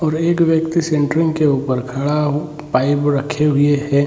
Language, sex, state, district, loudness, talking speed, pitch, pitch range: Hindi, male, Bihar, Purnia, -17 LUFS, 160 wpm, 150 Hz, 140-155 Hz